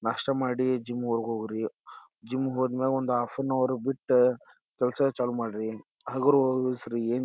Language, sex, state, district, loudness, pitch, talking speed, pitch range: Kannada, male, Karnataka, Dharwad, -28 LUFS, 125 Hz, 130 wpm, 115-130 Hz